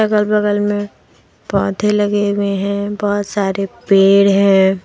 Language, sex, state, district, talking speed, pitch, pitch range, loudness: Hindi, female, Jharkhand, Deoghar, 135 wpm, 205 Hz, 195-205 Hz, -15 LUFS